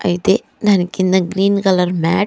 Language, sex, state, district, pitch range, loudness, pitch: Telugu, female, Andhra Pradesh, Chittoor, 180-195 Hz, -15 LUFS, 190 Hz